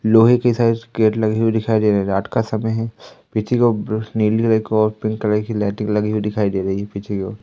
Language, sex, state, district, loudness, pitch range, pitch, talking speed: Hindi, male, Madhya Pradesh, Katni, -18 LUFS, 105-115 Hz, 110 Hz, 285 wpm